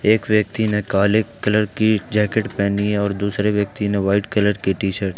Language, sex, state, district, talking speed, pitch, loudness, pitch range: Hindi, male, Jharkhand, Ranchi, 210 wpm, 105 Hz, -19 LUFS, 100-105 Hz